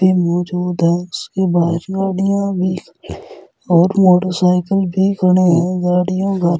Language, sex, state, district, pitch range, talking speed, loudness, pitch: Hindi, male, Delhi, New Delhi, 175-190 Hz, 135 wpm, -15 LUFS, 180 Hz